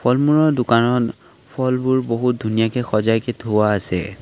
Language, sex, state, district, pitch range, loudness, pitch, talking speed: Assamese, male, Assam, Kamrup Metropolitan, 110-125 Hz, -18 LUFS, 120 Hz, 130 wpm